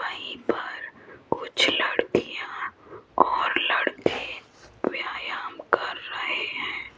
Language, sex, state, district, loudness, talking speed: Hindi, female, Rajasthan, Jaipur, -26 LUFS, 85 wpm